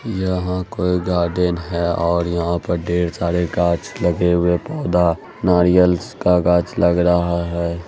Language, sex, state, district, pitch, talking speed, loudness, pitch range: Hindi, male, Bihar, Araria, 85 Hz, 145 wpm, -18 LUFS, 85-90 Hz